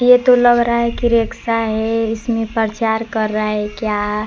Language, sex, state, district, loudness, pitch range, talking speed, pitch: Hindi, female, Bihar, Kaimur, -16 LUFS, 220-235 Hz, 195 wpm, 225 Hz